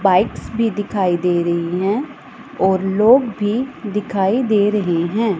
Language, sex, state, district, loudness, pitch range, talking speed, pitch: Hindi, female, Punjab, Pathankot, -18 LUFS, 190-230 Hz, 145 wpm, 205 Hz